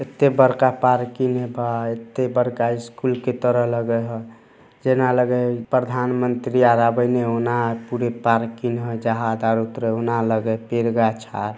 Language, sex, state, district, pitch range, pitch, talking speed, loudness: Hindi, male, Bihar, Samastipur, 115-125 Hz, 120 Hz, 125 wpm, -21 LUFS